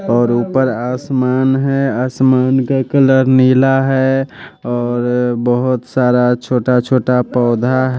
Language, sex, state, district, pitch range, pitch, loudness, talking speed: Hindi, male, Bihar, West Champaran, 125-130 Hz, 130 Hz, -14 LUFS, 115 wpm